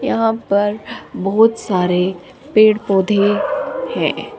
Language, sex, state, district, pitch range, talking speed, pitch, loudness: Hindi, female, Uttar Pradesh, Shamli, 195-225 Hz, 95 wpm, 210 Hz, -16 LUFS